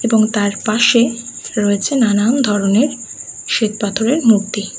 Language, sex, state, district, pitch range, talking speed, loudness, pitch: Bengali, female, West Bengal, Kolkata, 205-235 Hz, 100 wpm, -15 LUFS, 220 Hz